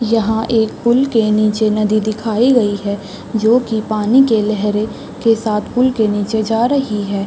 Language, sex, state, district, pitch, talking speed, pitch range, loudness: Hindi, female, Chhattisgarh, Bastar, 220 Hz, 180 wpm, 210-230 Hz, -15 LUFS